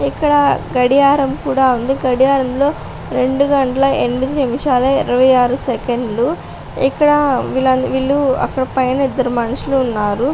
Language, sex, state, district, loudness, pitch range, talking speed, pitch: Telugu, female, Andhra Pradesh, Visakhapatnam, -15 LUFS, 250-275 Hz, 110 wpm, 260 Hz